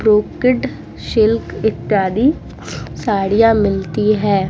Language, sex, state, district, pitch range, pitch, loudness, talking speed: Hindi, female, Uttar Pradesh, Muzaffarnagar, 200-225 Hz, 215 Hz, -16 LUFS, 80 wpm